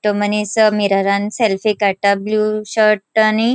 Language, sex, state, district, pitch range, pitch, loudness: Konkani, female, Goa, North and South Goa, 200-215 Hz, 210 Hz, -16 LUFS